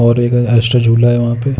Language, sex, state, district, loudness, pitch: Hindi, male, Uttar Pradesh, Jalaun, -12 LUFS, 120 Hz